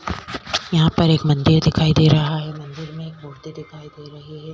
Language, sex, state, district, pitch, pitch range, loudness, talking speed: Hindi, female, Chhattisgarh, Korba, 155 Hz, 150-160 Hz, -17 LUFS, 210 wpm